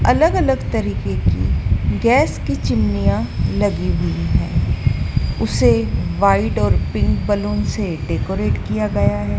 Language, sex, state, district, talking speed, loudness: Hindi, female, Madhya Pradesh, Dhar, 130 wpm, -18 LUFS